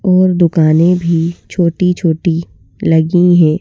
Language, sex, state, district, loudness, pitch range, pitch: Hindi, female, Madhya Pradesh, Bhopal, -12 LUFS, 165-180 Hz, 170 Hz